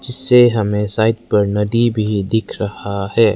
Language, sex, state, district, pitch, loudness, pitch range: Hindi, male, Arunachal Pradesh, Lower Dibang Valley, 110 Hz, -16 LUFS, 105-115 Hz